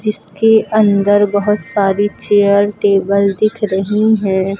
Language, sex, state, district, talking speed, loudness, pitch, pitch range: Hindi, female, Uttar Pradesh, Lucknow, 115 wpm, -13 LUFS, 205 Hz, 200-210 Hz